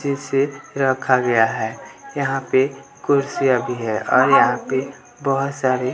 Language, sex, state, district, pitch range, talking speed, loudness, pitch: Hindi, male, Bihar, West Champaran, 125-140 Hz, 150 wpm, -19 LUFS, 135 Hz